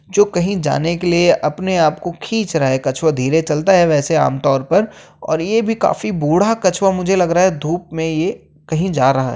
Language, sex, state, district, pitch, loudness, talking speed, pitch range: Hindi, male, Uttar Pradesh, Jyotiba Phule Nagar, 170 Hz, -16 LUFS, 230 wpm, 155-190 Hz